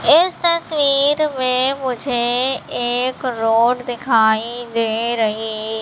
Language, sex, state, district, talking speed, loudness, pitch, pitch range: Hindi, female, Madhya Pradesh, Katni, 95 wpm, -17 LUFS, 245 Hz, 230-270 Hz